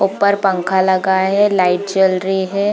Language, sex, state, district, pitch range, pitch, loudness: Hindi, female, Bihar, Purnia, 190-200 Hz, 190 Hz, -15 LUFS